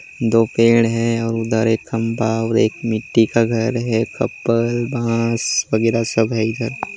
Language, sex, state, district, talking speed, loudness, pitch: Hindi, male, Chhattisgarh, Jashpur, 165 wpm, -18 LUFS, 115 Hz